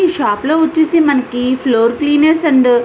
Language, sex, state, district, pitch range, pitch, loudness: Telugu, female, Andhra Pradesh, Visakhapatnam, 250-315 Hz, 290 Hz, -13 LUFS